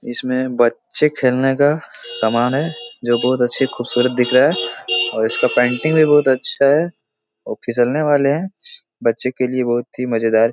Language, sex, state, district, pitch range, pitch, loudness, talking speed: Hindi, male, Bihar, Jahanabad, 120-150 Hz, 125 Hz, -17 LUFS, 175 wpm